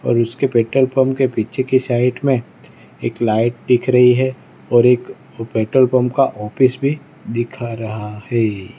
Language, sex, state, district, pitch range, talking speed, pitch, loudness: Hindi, male, Gujarat, Valsad, 115-130 Hz, 165 wpm, 125 Hz, -17 LUFS